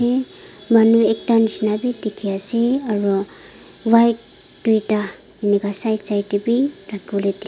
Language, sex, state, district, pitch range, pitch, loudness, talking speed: Nagamese, female, Nagaland, Dimapur, 205-235 Hz, 220 Hz, -19 LUFS, 150 wpm